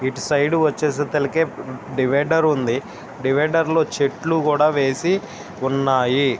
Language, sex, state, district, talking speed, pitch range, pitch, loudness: Telugu, male, Andhra Pradesh, Srikakulam, 105 wpm, 135-155 Hz, 145 Hz, -20 LUFS